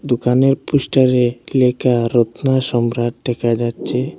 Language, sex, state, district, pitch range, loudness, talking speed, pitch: Bengali, male, Assam, Hailakandi, 120-130 Hz, -17 LUFS, 100 wpm, 125 Hz